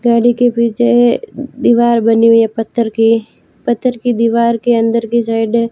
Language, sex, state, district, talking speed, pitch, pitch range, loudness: Hindi, female, Rajasthan, Barmer, 170 wpm, 235 Hz, 230-240 Hz, -13 LUFS